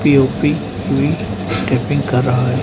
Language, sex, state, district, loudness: Hindi, male, Haryana, Charkhi Dadri, -17 LUFS